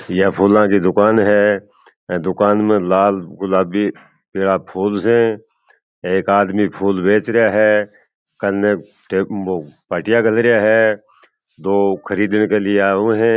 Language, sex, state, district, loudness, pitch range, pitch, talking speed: Marwari, male, Rajasthan, Churu, -16 LUFS, 95-105 Hz, 100 Hz, 130 wpm